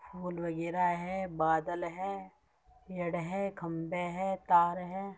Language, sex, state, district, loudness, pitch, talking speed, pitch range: Hindi, female, Uttar Pradesh, Muzaffarnagar, -33 LUFS, 180 Hz, 140 wpm, 175-190 Hz